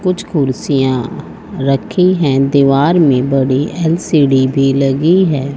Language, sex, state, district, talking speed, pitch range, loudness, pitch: Hindi, male, Haryana, Rohtak, 120 wpm, 135-165 Hz, -13 LUFS, 140 Hz